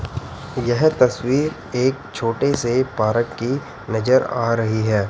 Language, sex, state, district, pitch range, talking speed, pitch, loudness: Hindi, male, Chandigarh, Chandigarh, 115-130 Hz, 130 wpm, 125 Hz, -20 LUFS